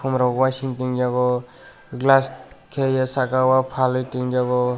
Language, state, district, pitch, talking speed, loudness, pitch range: Kokborok, Tripura, West Tripura, 130 Hz, 150 wpm, -21 LUFS, 125-130 Hz